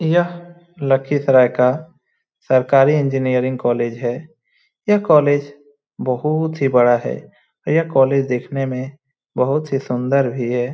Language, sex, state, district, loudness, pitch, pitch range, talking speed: Hindi, male, Bihar, Lakhisarai, -17 LUFS, 135 Hz, 125-150 Hz, 125 wpm